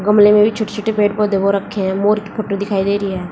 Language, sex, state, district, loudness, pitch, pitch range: Hindi, female, Haryana, Jhajjar, -16 LUFS, 205 Hz, 195-210 Hz